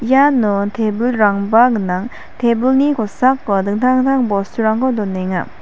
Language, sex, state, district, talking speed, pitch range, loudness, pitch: Garo, female, Meghalaya, West Garo Hills, 95 wpm, 200-255 Hz, -15 LUFS, 225 Hz